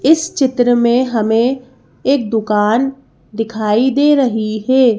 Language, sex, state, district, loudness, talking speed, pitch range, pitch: Hindi, female, Madhya Pradesh, Bhopal, -14 LUFS, 120 wpm, 220-270 Hz, 245 Hz